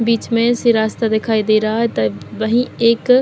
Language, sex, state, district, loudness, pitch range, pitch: Hindi, female, Chhattisgarh, Bilaspur, -16 LUFS, 220-235 Hz, 230 Hz